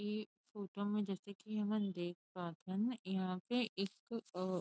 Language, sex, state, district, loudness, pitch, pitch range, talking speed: Chhattisgarhi, female, Chhattisgarh, Rajnandgaon, -42 LUFS, 200 Hz, 185-215 Hz, 170 wpm